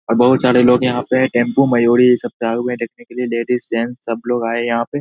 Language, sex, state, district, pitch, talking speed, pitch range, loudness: Hindi, male, Bihar, Saharsa, 120 Hz, 300 wpm, 120-125 Hz, -16 LUFS